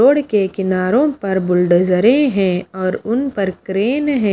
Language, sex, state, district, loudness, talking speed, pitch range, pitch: Hindi, female, Haryana, Charkhi Dadri, -16 LUFS, 150 wpm, 185-250 Hz, 195 Hz